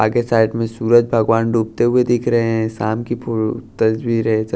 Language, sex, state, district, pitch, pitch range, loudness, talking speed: Hindi, male, Odisha, Nuapada, 115 Hz, 110-120 Hz, -17 LUFS, 185 wpm